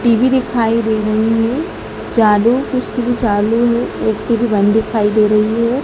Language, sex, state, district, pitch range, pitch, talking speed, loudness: Hindi, male, Madhya Pradesh, Dhar, 215-240 Hz, 225 Hz, 175 wpm, -15 LUFS